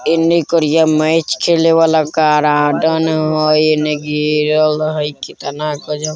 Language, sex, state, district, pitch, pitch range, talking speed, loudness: Bajjika, male, Bihar, Vaishali, 155 Hz, 150-160 Hz, 115 wpm, -14 LUFS